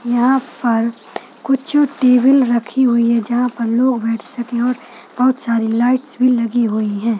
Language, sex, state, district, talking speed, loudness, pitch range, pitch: Hindi, female, Chhattisgarh, Balrampur, 165 wpm, -16 LUFS, 230-255 Hz, 245 Hz